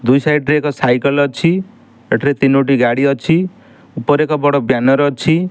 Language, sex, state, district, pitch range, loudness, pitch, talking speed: Odia, male, Odisha, Nuapada, 135-155 Hz, -14 LUFS, 145 Hz, 165 wpm